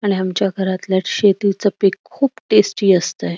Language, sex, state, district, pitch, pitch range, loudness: Marathi, female, Karnataka, Belgaum, 195 Hz, 190-205 Hz, -17 LUFS